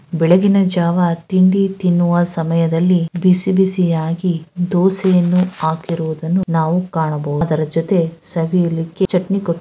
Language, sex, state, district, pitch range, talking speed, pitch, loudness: Kannada, female, Karnataka, Gulbarga, 165-185 Hz, 105 wpm, 175 Hz, -16 LUFS